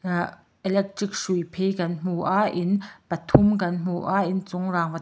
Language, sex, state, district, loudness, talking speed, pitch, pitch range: Mizo, male, Mizoram, Aizawl, -24 LUFS, 165 wpm, 185 Hz, 175-195 Hz